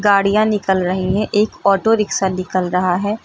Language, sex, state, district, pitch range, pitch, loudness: Hindi, female, Uttar Pradesh, Lucknow, 185-210 Hz, 195 Hz, -17 LUFS